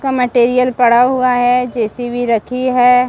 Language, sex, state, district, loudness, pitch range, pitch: Hindi, female, Chhattisgarh, Balrampur, -13 LUFS, 240-250 Hz, 250 Hz